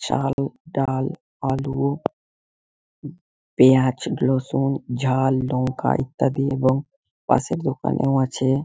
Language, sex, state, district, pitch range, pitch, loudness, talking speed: Bengali, male, West Bengal, Malda, 130-140 Hz, 135 Hz, -22 LUFS, 85 wpm